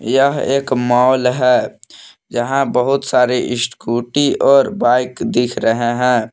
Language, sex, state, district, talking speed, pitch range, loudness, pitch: Hindi, male, Jharkhand, Palamu, 125 wpm, 120-135 Hz, -15 LUFS, 125 Hz